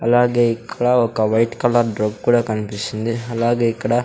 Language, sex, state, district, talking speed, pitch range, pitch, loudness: Telugu, male, Andhra Pradesh, Sri Satya Sai, 135 wpm, 110-120 Hz, 115 Hz, -18 LUFS